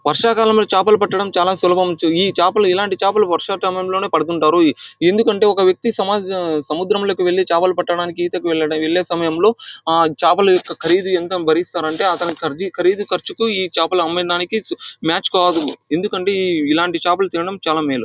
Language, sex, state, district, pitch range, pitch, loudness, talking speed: Telugu, male, Andhra Pradesh, Anantapur, 170-200 Hz, 180 Hz, -16 LUFS, 155 wpm